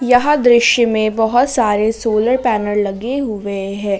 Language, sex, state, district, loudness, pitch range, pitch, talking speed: Hindi, female, Jharkhand, Palamu, -15 LUFS, 210-245 Hz, 225 Hz, 150 wpm